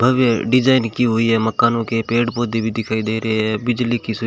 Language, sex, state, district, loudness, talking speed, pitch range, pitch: Hindi, male, Rajasthan, Bikaner, -18 LUFS, 240 wpm, 110-120 Hz, 115 Hz